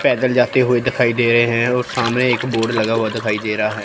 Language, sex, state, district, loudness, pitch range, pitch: Hindi, female, Chandigarh, Chandigarh, -17 LUFS, 115-125 Hz, 120 Hz